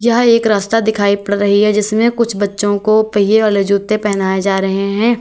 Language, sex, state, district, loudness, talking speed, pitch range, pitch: Hindi, female, Uttar Pradesh, Lalitpur, -13 LUFS, 205 wpm, 200-220 Hz, 205 Hz